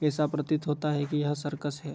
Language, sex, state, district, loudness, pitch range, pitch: Hindi, male, Bihar, Begusarai, -30 LUFS, 145-150 Hz, 150 Hz